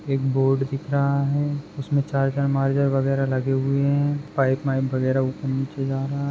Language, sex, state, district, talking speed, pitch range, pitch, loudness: Hindi, male, Maharashtra, Pune, 200 wpm, 135-140 Hz, 135 Hz, -23 LUFS